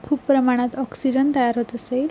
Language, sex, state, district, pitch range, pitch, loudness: Marathi, female, Maharashtra, Pune, 245-275 Hz, 260 Hz, -21 LUFS